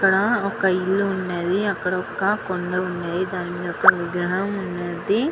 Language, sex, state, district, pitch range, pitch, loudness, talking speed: Telugu, female, Andhra Pradesh, Guntur, 175-195 Hz, 185 Hz, -22 LUFS, 90 wpm